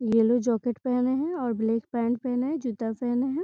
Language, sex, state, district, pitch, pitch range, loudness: Hindi, female, Bihar, Gopalganj, 245 Hz, 230-255 Hz, -27 LUFS